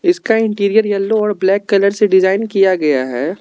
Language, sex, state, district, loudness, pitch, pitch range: Hindi, male, Arunachal Pradesh, Lower Dibang Valley, -14 LUFS, 200 Hz, 190-215 Hz